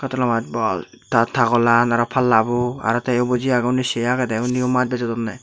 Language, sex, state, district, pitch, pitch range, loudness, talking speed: Chakma, male, Tripura, Unakoti, 125 Hz, 120-125 Hz, -19 LUFS, 190 wpm